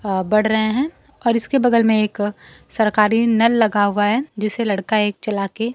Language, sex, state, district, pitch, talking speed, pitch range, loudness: Hindi, female, Bihar, Kaimur, 215 Hz, 200 wpm, 205-230 Hz, -18 LUFS